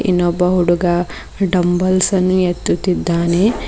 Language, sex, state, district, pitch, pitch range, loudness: Kannada, female, Karnataka, Bidar, 180 Hz, 175-185 Hz, -16 LUFS